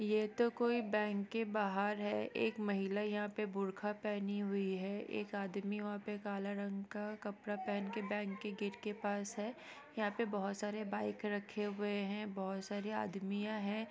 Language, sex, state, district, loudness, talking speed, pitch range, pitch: Hindi, female, Bihar, East Champaran, -40 LUFS, 185 wpm, 200-210 Hz, 205 Hz